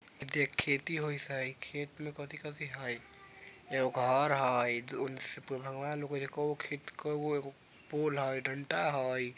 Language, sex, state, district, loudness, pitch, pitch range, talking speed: Bajjika, male, Bihar, Vaishali, -35 LUFS, 140 Hz, 130-150 Hz, 90 wpm